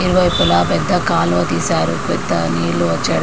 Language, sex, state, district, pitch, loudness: Telugu, female, Andhra Pradesh, Srikakulam, 85 Hz, -16 LUFS